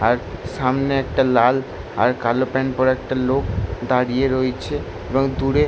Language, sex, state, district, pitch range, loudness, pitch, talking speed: Bengali, male, West Bengal, Jalpaiguri, 115-135 Hz, -20 LUFS, 130 Hz, 150 wpm